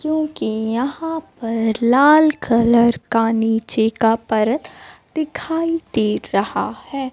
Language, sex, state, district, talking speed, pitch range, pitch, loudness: Hindi, female, Bihar, Kaimur, 110 wpm, 225-305 Hz, 235 Hz, -18 LUFS